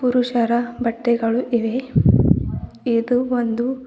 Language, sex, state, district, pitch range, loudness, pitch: Kannada, female, Karnataka, Bidar, 235-250 Hz, -20 LUFS, 240 Hz